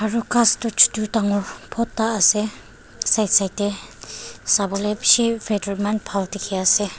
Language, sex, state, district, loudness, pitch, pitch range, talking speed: Nagamese, female, Nagaland, Dimapur, -19 LUFS, 210 Hz, 200-225 Hz, 145 wpm